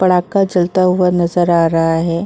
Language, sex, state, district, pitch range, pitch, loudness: Hindi, female, Uttar Pradesh, Muzaffarnagar, 170-180 Hz, 175 Hz, -14 LUFS